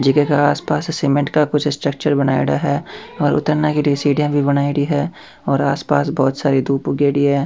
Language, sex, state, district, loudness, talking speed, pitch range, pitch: Rajasthani, male, Rajasthan, Churu, -17 LUFS, 210 wpm, 140-150 Hz, 145 Hz